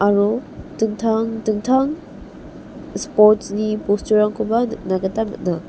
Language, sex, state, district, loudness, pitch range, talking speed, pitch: Garo, female, Meghalaya, West Garo Hills, -19 LUFS, 205-225 Hz, 85 wpm, 215 Hz